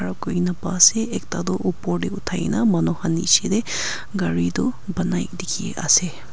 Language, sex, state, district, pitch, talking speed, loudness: Nagamese, female, Nagaland, Kohima, 170 Hz, 180 wpm, -21 LUFS